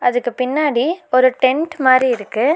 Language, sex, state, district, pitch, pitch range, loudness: Tamil, female, Tamil Nadu, Nilgiris, 255 Hz, 245-295 Hz, -16 LUFS